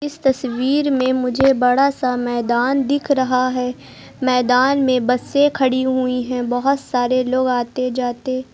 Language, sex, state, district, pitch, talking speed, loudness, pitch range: Hindi, male, Uttar Pradesh, Lucknow, 255 Hz, 150 wpm, -18 LUFS, 250-270 Hz